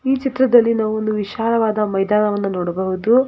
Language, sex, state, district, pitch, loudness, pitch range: Kannada, female, Karnataka, Gulbarga, 215 Hz, -18 LUFS, 200-235 Hz